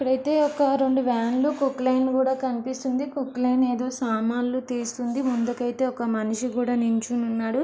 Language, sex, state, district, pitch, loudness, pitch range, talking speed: Telugu, female, Andhra Pradesh, Visakhapatnam, 255 Hz, -24 LUFS, 240-265 Hz, 150 wpm